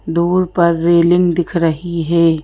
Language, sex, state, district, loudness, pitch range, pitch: Hindi, female, Madhya Pradesh, Bhopal, -14 LUFS, 165-175 Hz, 170 Hz